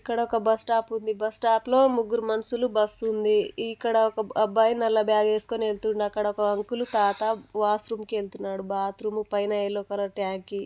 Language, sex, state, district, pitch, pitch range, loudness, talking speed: Telugu, female, Telangana, Nalgonda, 215 Hz, 210-225 Hz, -26 LUFS, 185 wpm